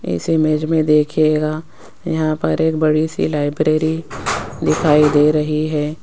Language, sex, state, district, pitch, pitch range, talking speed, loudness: Hindi, female, Rajasthan, Jaipur, 155 Hz, 150-155 Hz, 140 wpm, -17 LUFS